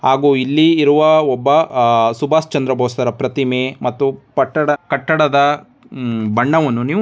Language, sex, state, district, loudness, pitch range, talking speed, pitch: Kannada, male, Karnataka, Dharwad, -15 LUFS, 125-150 Hz, 145 wpm, 140 Hz